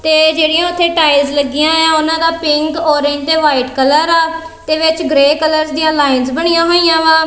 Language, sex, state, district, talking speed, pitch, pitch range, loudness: Punjabi, female, Punjab, Kapurthala, 205 wpm, 315 Hz, 295-325 Hz, -11 LUFS